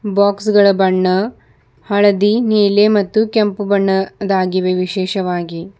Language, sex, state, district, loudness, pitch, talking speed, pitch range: Kannada, female, Karnataka, Bidar, -15 LUFS, 200 Hz, 95 wpm, 185-205 Hz